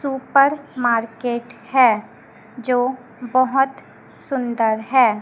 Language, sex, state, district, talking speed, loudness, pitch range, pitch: Hindi, female, Chhattisgarh, Raipur, 80 wpm, -19 LUFS, 235-265 Hz, 250 Hz